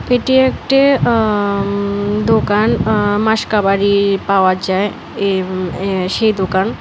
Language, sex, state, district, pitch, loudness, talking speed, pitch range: Bengali, female, Tripura, West Tripura, 200 Hz, -15 LUFS, 95 wpm, 195-220 Hz